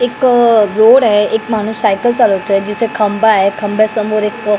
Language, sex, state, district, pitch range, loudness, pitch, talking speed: Marathi, female, Maharashtra, Mumbai Suburban, 210-225 Hz, -12 LUFS, 215 Hz, 185 wpm